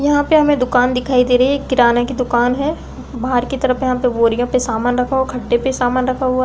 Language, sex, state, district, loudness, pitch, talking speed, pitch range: Hindi, female, Uttar Pradesh, Deoria, -16 LUFS, 255 Hz, 270 wpm, 245-265 Hz